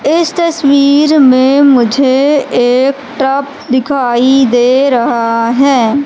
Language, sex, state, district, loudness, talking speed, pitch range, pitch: Hindi, female, Madhya Pradesh, Katni, -9 LUFS, 100 wpm, 250-280 Hz, 270 Hz